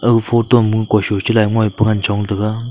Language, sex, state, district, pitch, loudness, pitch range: Wancho, male, Arunachal Pradesh, Longding, 110 Hz, -15 LUFS, 105-115 Hz